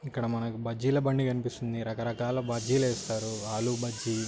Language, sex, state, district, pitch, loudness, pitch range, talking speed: Telugu, male, Telangana, Karimnagar, 120 Hz, -31 LUFS, 115-125 Hz, 155 wpm